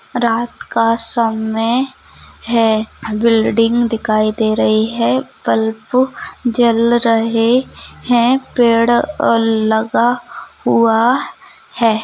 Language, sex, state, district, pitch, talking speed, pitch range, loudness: Hindi, female, Maharashtra, Chandrapur, 230 Hz, 90 wpm, 220-240 Hz, -15 LUFS